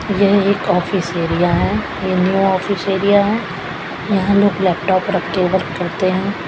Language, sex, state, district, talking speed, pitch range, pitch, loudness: Hindi, female, Chhattisgarh, Raipur, 165 wpm, 180-200 Hz, 190 Hz, -16 LUFS